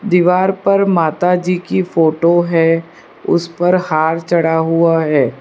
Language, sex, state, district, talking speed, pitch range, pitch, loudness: Hindi, female, Gujarat, Valsad, 145 wpm, 165-180 Hz, 170 Hz, -14 LUFS